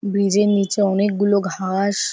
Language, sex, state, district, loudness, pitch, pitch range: Bengali, female, West Bengal, Paschim Medinipur, -19 LUFS, 200 Hz, 195-205 Hz